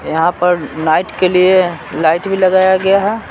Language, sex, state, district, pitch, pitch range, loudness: Hindi, male, Bihar, Patna, 185 Hz, 170-190 Hz, -13 LUFS